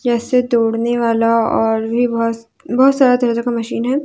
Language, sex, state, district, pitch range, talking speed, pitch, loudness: Hindi, female, Jharkhand, Deoghar, 230-245 Hz, 175 wpm, 235 Hz, -16 LUFS